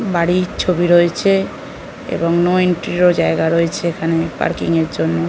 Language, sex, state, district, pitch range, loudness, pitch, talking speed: Bengali, female, West Bengal, North 24 Parganas, 165-180 Hz, -16 LUFS, 175 Hz, 145 wpm